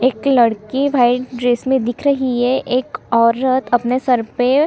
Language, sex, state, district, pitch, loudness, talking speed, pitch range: Hindi, female, Chhattisgarh, Kabirdham, 250 Hz, -16 LUFS, 180 wpm, 240-265 Hz